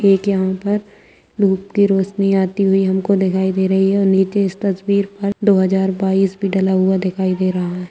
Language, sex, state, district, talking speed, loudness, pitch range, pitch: Hindi, female, Bihar, Araria, 210 wpm, -16 LUFS, 190-200 Hz, 190 Hz